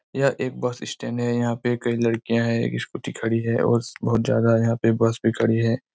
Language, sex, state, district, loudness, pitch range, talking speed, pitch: Hindi, male, Chhattisgarh, Raigarh, -23 LUFS, 115-120 Hz, 230 wpm, 115 Hz